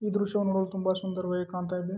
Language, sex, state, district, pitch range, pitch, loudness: Kannada, male, Karnataka, Chamarajanagar, 180-195 Hz, 190 Hz, -30 LUFS